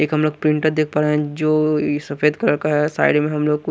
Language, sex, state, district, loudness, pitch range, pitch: Hindi, male, Haryana, Rohtak, -18 LUFS, 150-155 Hz, 150 Hz